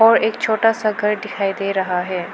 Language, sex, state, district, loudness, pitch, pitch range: Hindi, female, Arunachal Pradesh, Lower Dibang Valley, -19 LUFS, 210 Hz, 195-220 Hz